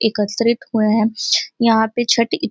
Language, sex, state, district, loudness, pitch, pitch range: Hindi, female, Uttar Pradesh, Deoria, -17 LUFS, 225 Hz, 220-235 Hz